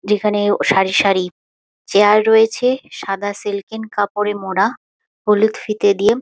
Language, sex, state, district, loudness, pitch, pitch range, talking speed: Bengali, female, West Bengal, Jhargram, -16 LUFS, 205 Hz, 200-220 Hz, 125 wpm